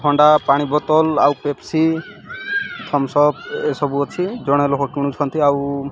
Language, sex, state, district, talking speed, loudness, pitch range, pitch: Odia, male, Odisha, Malkangiri, 130 wpm, -18 LUFS, 140-155 Hz, 145 Hz